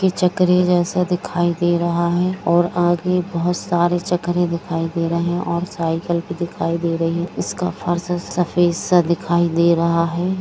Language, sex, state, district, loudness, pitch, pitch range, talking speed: Hindi, female, Jharkhand, Jamtara, -19 LUFS, 175 Hz, 170-180 Hz, 175 wpm